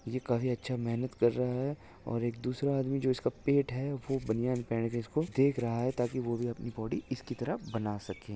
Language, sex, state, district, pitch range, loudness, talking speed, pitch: Hindi, male, Maharashtra, Solapur, 115-130 Hz, -33 LUFS, 220 wpm, 125 Hz